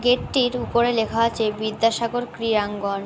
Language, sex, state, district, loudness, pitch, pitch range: Bengali, female, West Bengal, North 24 Parganas, -22 LUFS, 230 Hz, 215-240 Hz